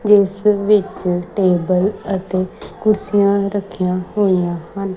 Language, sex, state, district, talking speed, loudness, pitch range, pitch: Punjabi, female, Punjab, Kapurthala, 95 wpm, -17 LUFS, 185-205 Hz, 195 Hz